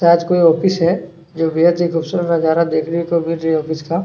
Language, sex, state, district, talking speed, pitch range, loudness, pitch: Hindi, male, Chhattisgarh, Kabirdham, 250 wpm, 165-170 Hz, -16 LUFS, 170 Hz